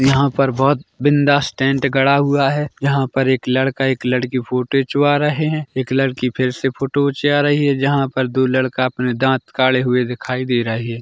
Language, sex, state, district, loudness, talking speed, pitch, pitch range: Hindi, male, Chhattisgarh, Bilaspur, -17 LUFS, 205 wpm, 135 Hz, 130-140 Hz